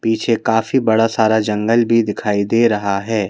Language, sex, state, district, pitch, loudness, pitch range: Hindi, male, Madhya Pradesh, Bhopal, 110 Hz, -16 LUFS, 105-115 Hz